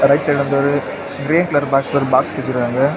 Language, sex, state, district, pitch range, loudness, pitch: Tamil, male, Tamil Nadu, Kanyakumari, 135-145 Hz, -17 LUFS, 140 Hz